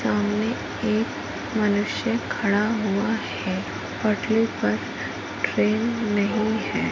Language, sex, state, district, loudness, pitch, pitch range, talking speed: Hindi, female, Jharkhand, Sahebganj, -24 LUFS, 215 Hz, 205-225 Hz, 95 wpm